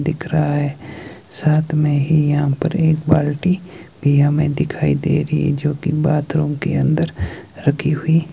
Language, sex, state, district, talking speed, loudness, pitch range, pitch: Hindi, male, Himachal Pradesh, Shimla, 165 wpm, -18 LUFS, 145-160 Hz, 155 Hz